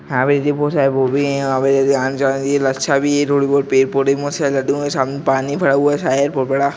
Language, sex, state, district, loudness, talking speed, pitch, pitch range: Hindi, female, Bihar, Purnia, -16 LUFS, 220 wpm, 140 Hz, 135-145 Hz